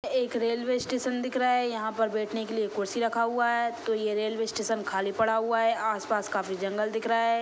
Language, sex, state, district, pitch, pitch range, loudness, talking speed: Hindi, female, Chhattisgarh, Sukma, 225 Hz, 215-235 Hz, -28 LUFS, 245 wpm